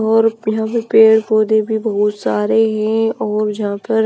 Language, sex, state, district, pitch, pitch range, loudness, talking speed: Hindi, female, Himachal Pradesh, Shimla, 220 Hz, 210-220 Hz, -15 LUFS, 175 wpm